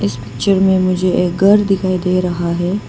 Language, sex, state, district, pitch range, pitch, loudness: Hindi, female, Arunachal Pradesh, Papum Pare, 175-190 Hz, 185 Hz, -15 LUFS